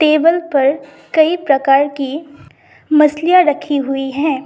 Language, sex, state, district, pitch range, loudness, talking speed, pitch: Hindi, female, Assam, Sonitpur, 275-310 Hz, -14 LUFS, 120 wpm, 295 Hz